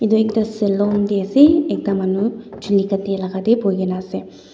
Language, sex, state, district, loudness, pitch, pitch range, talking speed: Nagamese, female, Nagaland, Dimapur, -18 LUFS, 200 Hz, 190-220 Hz, 170 wpm